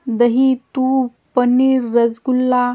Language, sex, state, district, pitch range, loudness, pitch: Marathi, female, Maharashtra, Washim, 240-260 Hz, -16 LUFS, 255 Hz